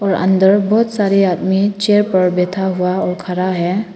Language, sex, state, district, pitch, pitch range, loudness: Hindi, female, Arunachal Pradesh, Papum Pare, 190 Hz, 185-200 Hz, -15 LUFS